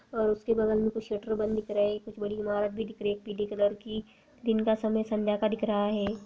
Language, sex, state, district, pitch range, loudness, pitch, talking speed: Hindi, female, Rajasthan, Nagaur, 210-220 Hz, -30 LUFS, 215 Hz, 250 wpm